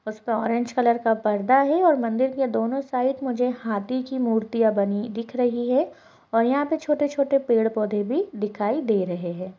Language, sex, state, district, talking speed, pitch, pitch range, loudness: Hindi, female, Chhattisgarh, Balrampur, 190 wpm, 235 Hz, 220-265 Hz, -23 LUFS